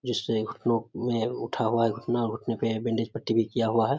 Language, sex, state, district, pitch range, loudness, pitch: Hindi, male, Bihar, Samastipur, 115-120 Hz, -28 LUFS, 115 Hz